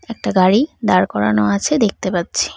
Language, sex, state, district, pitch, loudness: Bengali, female, West Bengal, Cooch Behar, 175 Hz, -16 LUFS